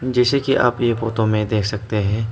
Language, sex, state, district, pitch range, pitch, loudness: Hindi, male, Arunachal Pradesh, Lower Dibang Valley, 105-125 Hz, 110 Hz, -19 LUFS